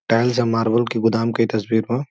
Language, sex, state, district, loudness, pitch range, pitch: Bhojpuri, male, Uttar Pradesh, Gorakhpur, -19 LUFS, 115-120 Hz, 115 Hz